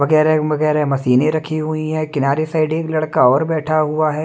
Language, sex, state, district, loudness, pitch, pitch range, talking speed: Hindi, male, Chhattisgarh, Raipur, -17 LUFS, 155 Hz, 150-155 Hz, 195 wpm